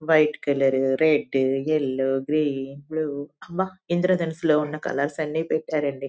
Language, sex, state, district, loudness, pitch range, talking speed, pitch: Telugu, female, Telangana, Nalgonda, -24 LUFS, 135-160 Hz, 120 wpm, 150 Hz